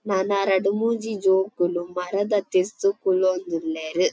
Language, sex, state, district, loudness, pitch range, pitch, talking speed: Tulu, female, Karnataka, Dakshina Kannada, -23 LUFS, 180-200 Hz, 190 Hz, 115 wpm